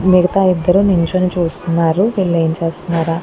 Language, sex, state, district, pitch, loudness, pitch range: Telugu, female, Andhra Pradesh, Guntur, 175 Hz, -15 LUFS, 165-185 Hz